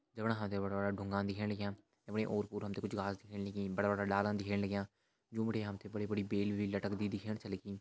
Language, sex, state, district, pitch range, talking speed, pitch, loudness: Hindi, male, Uttarakhand, Tehri Garhwal, 100-105 Hz, 225 wpm, 100 Hz, -39 LUFS